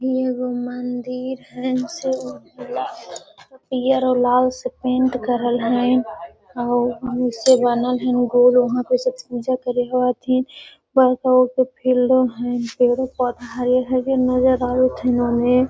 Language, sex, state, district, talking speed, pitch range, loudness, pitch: Magahi, female, Bihar, Gaya, 130 wpm, 245-255 Hz, -19 LUFS, 250 Hz